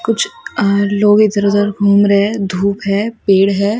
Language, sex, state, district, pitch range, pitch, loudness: Hindi, female, Maharashtra, Mumbai Suburban, 200-210 Hz, 205 Hz, -13 LUFS